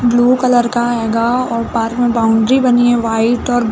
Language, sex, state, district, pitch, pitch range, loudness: Hindi, female, Uttar Pradesh, Budaun, 240 Hz, 230-245 Hz, -13 LUFS